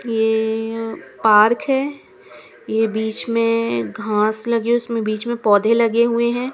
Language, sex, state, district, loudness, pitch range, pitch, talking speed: Hindi, female, Chandigarh, Chandigarh, -18 LUFS, 220-235 Hz, 225 Hz, 185 wpm